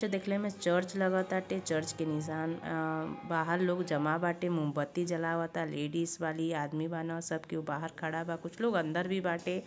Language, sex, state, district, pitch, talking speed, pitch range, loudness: Bhojpuri, male, Uttar Pradesh, Gorakhpur, 165 Hz, 185 wpm, 160-180 Hz, -34 LUFS